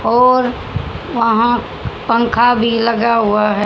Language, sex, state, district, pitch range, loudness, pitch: Hindi, female, Haryana, Charkhi Dadri, 230-240 Hz, -14 LUFS, 235 Hz